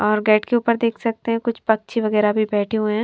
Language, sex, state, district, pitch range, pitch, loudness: Hindi, female, Punjab, Fazilka, 215-230 Hz, 220 Hz, -20 LUFS